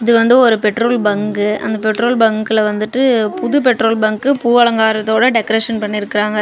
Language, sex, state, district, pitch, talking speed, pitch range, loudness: Tamil, female, Tamil Nadu, Namakkal, 220 Hz, 160 wpm, 210-235 Hz, -14 LUFS